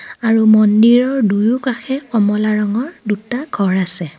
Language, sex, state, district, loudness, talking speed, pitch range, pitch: Assamese, female, Assam, Kamrup Metropolitan, -15 LUFS, 115 wpm, 210-245 Hz, 220 Hz